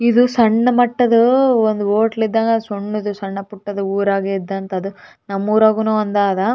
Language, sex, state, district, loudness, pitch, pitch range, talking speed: Kannada, female, Karnataka, Raichur, -17 LUFS, 215 Hz, 200-230 Hz, 130 wpm